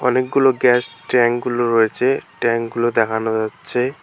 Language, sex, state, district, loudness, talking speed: Bengali, male, West Bengal, Alipurduar, -18 LUFS, 120 wpm